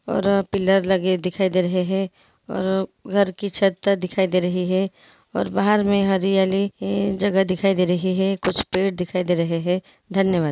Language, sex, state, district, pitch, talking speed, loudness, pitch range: Hindi, female, Andhra Pradesh, Chittoor, 190 Hz, 175 wpm, -21 LUFS, 185-195 Hz